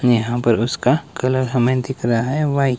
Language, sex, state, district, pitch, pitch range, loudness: Hindi, male, Himachal Pradesh, Shimla, 130 Hz, 120-135 Hz, -19 LUFS